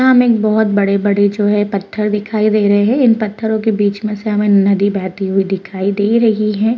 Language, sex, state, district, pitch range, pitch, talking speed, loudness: Hindi, female, Uttarakhand, Uttarkashi, 200-215 Hz, 210 Hz, 240 wpm, -14 LUFS